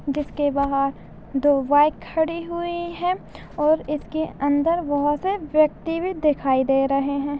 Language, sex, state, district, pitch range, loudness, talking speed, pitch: Hindi, female, Chhattisgarh, Balrampur, 280-330 Hz, -22 LUFS, 145 wpm, 295 Hz